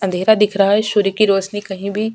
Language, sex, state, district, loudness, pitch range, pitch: Hindi, female, Chhattisgarh, Sukma, -16 LUFS, 195-210 Hz, 205 Hz